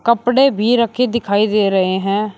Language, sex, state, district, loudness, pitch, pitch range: Hindi, male, Uttar Pradesh, Shamli, -15 LUFS, 215 Hz, 200-240 Hz